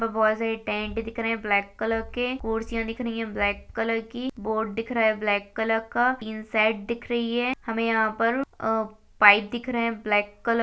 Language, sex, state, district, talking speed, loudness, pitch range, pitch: Hindi, female, Chhattisgarh, Jashpur, 215 wpm, -25 LUFS, 215-230 Hz, 225 Hz